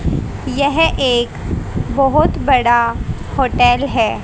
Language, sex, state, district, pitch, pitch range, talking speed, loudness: Hindi, female, Haryana, Rohtak, 260 Hz, 240-280 Hz, 85 wpm, -15 LUFS